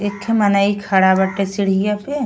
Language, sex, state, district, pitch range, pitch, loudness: Bhojpuri, female, Uttar Pradesh, Ghazipur, 195-205 Hz, 200 Hz, -17 LUFS